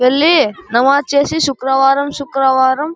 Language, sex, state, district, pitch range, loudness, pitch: Telugu, male, Andhra Pradesh, Anantapur, 260-285 Hz, -13 LUFS, 275 Hz